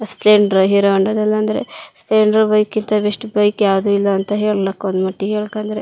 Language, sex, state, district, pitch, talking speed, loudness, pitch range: Kannada, female, Karnataka, Shimoga, 210 Hz, 165 wpm, -16 LUFS, 200-215 Hz